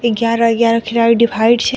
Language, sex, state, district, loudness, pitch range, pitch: Maithili, female, Bihar, Madhepura, -13 LUFS, 230-235 Hz, 230 Hz